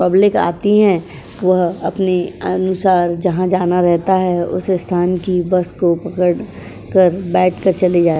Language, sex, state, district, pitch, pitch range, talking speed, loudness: Hindi, female, Uttar Pradesh, Jyotiba Phule Nagar, 180 Hz, 175-185 Hz, 160 wpm, -15 LUFS